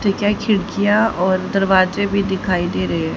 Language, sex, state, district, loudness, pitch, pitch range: Hindi, female, Haryana, Rohtak, -17 LUFS, 195 Hz, 185-205 Hz